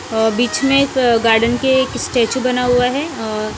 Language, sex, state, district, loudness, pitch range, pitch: Hindi, female, Punjab, Kapurthala, -15 LUFS, 230-265 Hz, 245 Hz